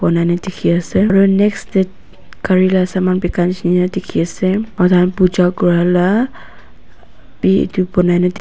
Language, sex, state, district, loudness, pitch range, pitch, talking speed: Nagamese, female, Nagaland, Dimapur, -15 LUFS, 180-190 Hz, 185 Hz, 130 wpm